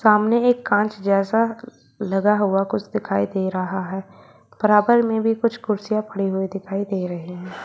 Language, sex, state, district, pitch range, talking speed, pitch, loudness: Hindi, female, Uttar Pradesh, Shamli, 190-220 Hz, 175 wpm, 205 Hz, -21 LUFS